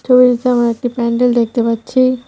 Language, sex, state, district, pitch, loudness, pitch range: Bengali, female, West Bengal, Cooch Behar, 245 Hz, -14 LUFS, 235-250 Hz